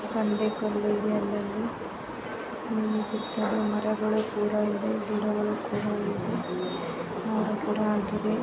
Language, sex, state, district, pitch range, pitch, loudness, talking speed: Kannada, female, Karnataka, Gulbarga, 210-215 Hz, 215 Hz, -29 LUFS, 105 wpm